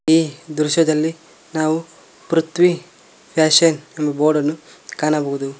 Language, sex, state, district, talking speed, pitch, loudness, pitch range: Kannada, male, Karnataka, Koppal, 85 wpm, 155 Hz, -18 LUFS, 150-165 Hz